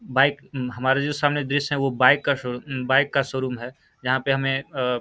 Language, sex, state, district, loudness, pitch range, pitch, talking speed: Hindi, male, Bihar, Samastipur, -23 LUFS, 130-140 Hz, 135 Hz, 225 wpm